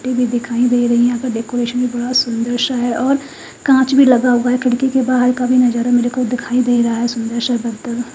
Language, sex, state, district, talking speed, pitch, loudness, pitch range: Hindi, female, Bihar, Katihar, 245 wpm, 245 Hz, -15 LUFS, 240-255 Hz